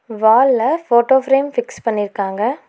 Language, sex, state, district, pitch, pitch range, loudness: Tamil, female, Tamil Nadu, Nilgiris, 235 Hz, 220-265 Hz, -15 LUFS